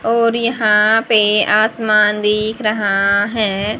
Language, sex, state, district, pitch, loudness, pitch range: Hindi, female, Haryana, Charkhi Dadri, 215 Hz, -14 LUFS, 210-225 Hz